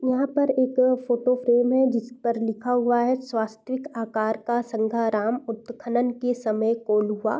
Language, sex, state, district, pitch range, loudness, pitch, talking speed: Hindi, female, Bihar, East Champaran, 225-250 Hz, -24 LUFS, 240 Hz, 155 wpm